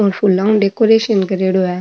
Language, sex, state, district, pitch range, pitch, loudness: Marwari, female, Rajasthan, Nagaur, 190-210 Hz, 195 Hz, -14 LUFS